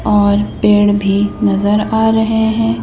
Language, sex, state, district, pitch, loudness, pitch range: Hindi, female, Madhya Pradesh, Bhopal, 205 Hz, -13 LUFS, 205-220 Hz